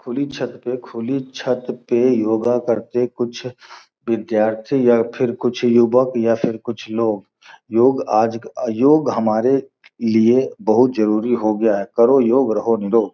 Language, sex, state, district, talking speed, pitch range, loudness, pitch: Hindi, male, Bihar, Gopalganj, 150 wpm, 110-125 Hz, -18 LUFS, 120 Hz